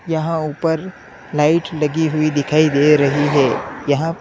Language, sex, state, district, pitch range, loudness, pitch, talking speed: Hindi, male, Uttar Pradesh, Lalitpur, 145-160 Hz, -17 LUFS, 155 Hz, 170 wpm